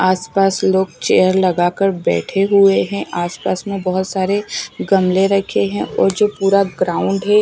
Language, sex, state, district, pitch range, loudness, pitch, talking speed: Hindi, female, Odisha, Malkangiri, 175-195 Hz, -16 LUFS, 190 Hz, 155 wpm